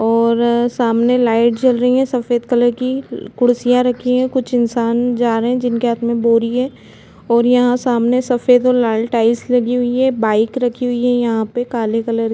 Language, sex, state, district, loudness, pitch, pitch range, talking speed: Hindi, female, Bihar, Gopalganj, -15 LUFS, 240 Hz, 230-250 Hz, 200 wpm